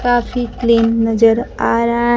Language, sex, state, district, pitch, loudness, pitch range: Hindi, female, Bihar, Kaimur, 235 Hz, -15 LUFS, 230-240 Hz